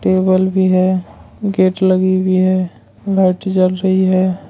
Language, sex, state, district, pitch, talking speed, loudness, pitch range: Hindi, male, Jharkhand, Ranchi, 185 Hz, 145 wpm, -15 LUFS, 185-190 Hz